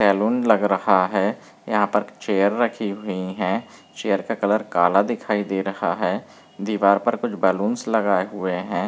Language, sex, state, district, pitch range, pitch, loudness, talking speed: Hindi, female, Bihar, Muzaffarpur, 95-105 Hz, 100 Hz, -21 LUFS, 170 wpm